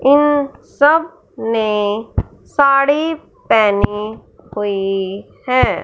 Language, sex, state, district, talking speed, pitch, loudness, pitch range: Hindi, male, Punjab, Fazilka, 70 wpm, 225 Hz, -16 LUFS, 210-290 Hz